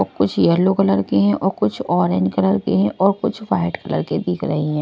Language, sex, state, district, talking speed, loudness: Hindi, female, Punjab, Kapurthala, 250 wpm, -18 LUFS